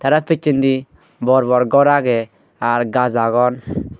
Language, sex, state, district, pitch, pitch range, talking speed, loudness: Chakma, female, Tripura, Dhalai, 125 Hz, 120-140 Hz, 135 wpm, -16 LUFS